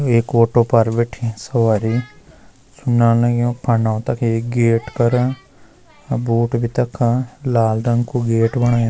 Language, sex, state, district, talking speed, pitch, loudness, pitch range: Garhwali, male, Uttarakhand, Uttarkashi, 135 wpm, 120 Hz, -17 LUFS, 115-125 Hz